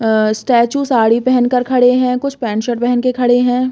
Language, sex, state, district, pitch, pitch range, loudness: Hindi, female, Chhattisgarh, Bastar, 245 Hz, 235-255 Hz, -14 LUFS